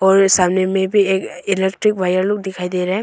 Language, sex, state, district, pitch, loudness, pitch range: Hindi, female, Arunachal Pradesh, Longding, 190 Hz, -17 LUFS, 185-195 Hz